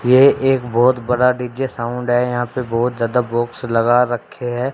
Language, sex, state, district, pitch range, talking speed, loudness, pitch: Hindi, male, Haryana, Rohtak, 120-125 Hz, 190 wpm, -17 LUFS, 125 Hz